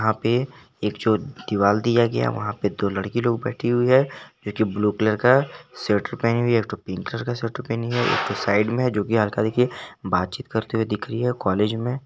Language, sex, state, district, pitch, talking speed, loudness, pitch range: Hindi, male, Jharkhand, Garhwa, 115 Hz, 240 wpm, -22 LUFS, 105-120 Hz